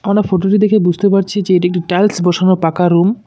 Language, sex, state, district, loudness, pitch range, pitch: Bengali, male, West Bengal, Cooch Behar, -13 LUFS, 180-205 Hz, 185 Hz